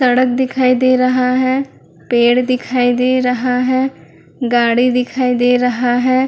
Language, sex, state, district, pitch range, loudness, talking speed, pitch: Hindi, female, Bihar, Madhepura, 245-255 Hz, -14 LUFS, 145 wpm, 250 Hz